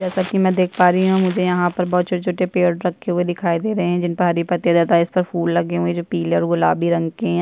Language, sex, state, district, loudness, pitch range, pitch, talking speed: Hindi, female, Chhattisgarh, Bastar, -18 LUFS, 170-180 Hz, 175 Hz, 305 wpm